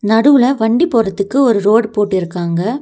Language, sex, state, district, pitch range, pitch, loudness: Tamil, female, Tamil Nadu, Nilgiris, 200-250 Hz, 225 Hz, -13 LUFS